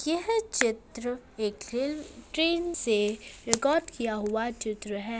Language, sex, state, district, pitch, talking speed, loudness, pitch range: Hindi, female, Bihar, Saharsa, 235 Hz, 125 wpm, -29 LUFS, 220-315 Hz